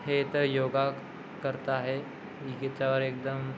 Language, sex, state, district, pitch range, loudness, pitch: Marathi, male, Maharashtra, Dhule, 135-140 Hz, -31 LUFS, 135 Hz